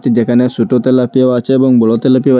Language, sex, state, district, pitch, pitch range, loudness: Bengali, male, Assam, Hailakandi, 125 Hz, 120-130 Hz, -11 LUFS